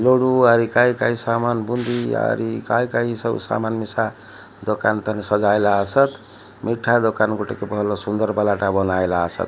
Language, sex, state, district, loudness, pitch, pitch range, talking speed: Odia, male, Odisha, Malkangiri, -20 LUFS, 110 Hz, 105-120 Hz, 150 wpm